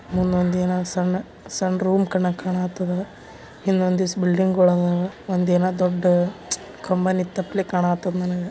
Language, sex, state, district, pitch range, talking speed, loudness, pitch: Kannada, male, Karnataka, Bijapur, 180-185 Hz, 120 wpm, -22 LUFS, 180 Hz